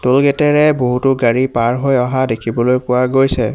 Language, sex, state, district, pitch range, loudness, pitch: Assamese, male, Assam, Hailakandi, 125-135 Hz, -14 LUFS, 130 Hz